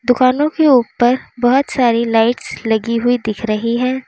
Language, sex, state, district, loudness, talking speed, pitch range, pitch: Hindi, female, Uttar Pradesh, Lalitpur, -15 LUFS, 160 wpm, 230-255 Hz, 245 Hz